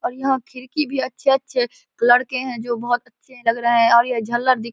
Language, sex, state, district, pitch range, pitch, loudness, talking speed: Hindi, male, Bihar, Samastipur, 235-260 Hz, 245 Hz, -20 LUFS, 230 wpm